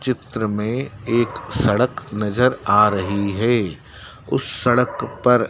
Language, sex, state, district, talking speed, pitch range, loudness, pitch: Hindi, male, Madhya Pradesh, Dhar, 120 wpm, 105-125 Hz, -20 LUFS, 110 Hz